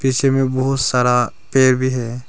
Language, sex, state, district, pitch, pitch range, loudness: Hindi, male, Arunachal Pradesh, Longding, 130 Hz, 125-135 Hz, -16 LUFS